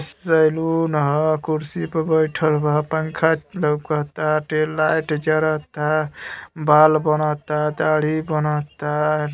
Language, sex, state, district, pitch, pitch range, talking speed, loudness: Bhojpuri, male, Uttar Pradesh, Gorakhpur, 155 Hz, 150-155 Hz, 95 wpm, -20 LUFS